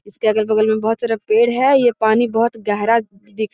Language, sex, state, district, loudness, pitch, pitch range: Magahi, female, Bihar, Gaya, -16 LUFS, 220 Hz, 215-230 Hz